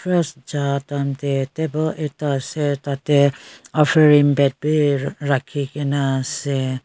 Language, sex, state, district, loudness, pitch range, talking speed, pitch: Nagamese, female, Nagaland, Kohima, -20 LUFS, 140-150 Hz, 130 wpm, 140 Hz